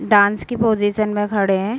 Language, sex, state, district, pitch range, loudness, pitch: Hindi, female, Jharkhand, Sahebganj, 200-215 Hz, -18 LUFS, 205 Hz